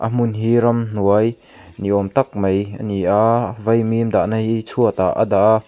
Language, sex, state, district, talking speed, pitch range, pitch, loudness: Mizo, male, Mizoram, Aizawl, 190 wpm, 100-115 Hz, 110 Hz, -18 LUFS